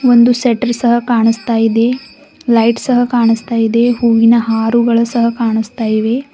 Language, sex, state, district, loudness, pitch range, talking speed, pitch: Kannada, female, Karnataka, Bidar, -12 LUFS, 225-245 Hz, 130 wpm, 235 Hz